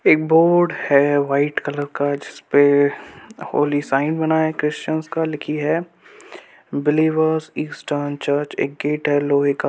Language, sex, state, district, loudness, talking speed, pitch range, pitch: Hindi, male, Uttar Pradesh, Budaun, -19 LUFS, 165 wpm, 145-160 Hz, 150 Hz